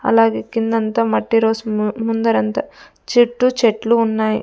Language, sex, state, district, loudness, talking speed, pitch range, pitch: Telugu, female, Andhra Pradesh, Sri Satya Sai, -17 LUFS, 110 wpm, 215-230 Hz, 225 Hz